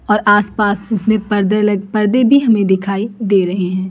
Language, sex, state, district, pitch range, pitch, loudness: Hindi, female, Chhattisgarh, Raipur, 195-215 Hz, 210 Hz, -14 LUFS